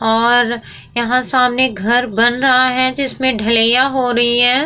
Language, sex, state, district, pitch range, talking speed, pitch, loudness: Hindi, female, Bihar, Vaishali, 235-255 Hz, 155 wpm, 245 Hz, -14 LUFS